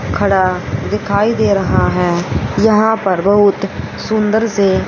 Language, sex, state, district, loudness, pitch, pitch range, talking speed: Hindi, female, Haryana, Rohtak, -14 LUFS, 195 Hz, 180-215 Hz, 125 wpm